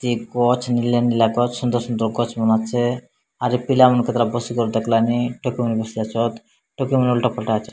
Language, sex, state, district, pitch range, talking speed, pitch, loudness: Odia, male, Odisha, Malkangiri, 115-125 Hz, 170 wpm, 120 Hz, -20 LUFS